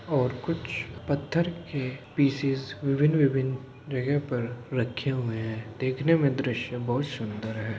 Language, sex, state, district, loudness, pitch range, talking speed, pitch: Hindi, male, Uttar Pradesh, Hamirpur, -28 LUFS, 120-140 Hz, 130 wpm, 130 Hz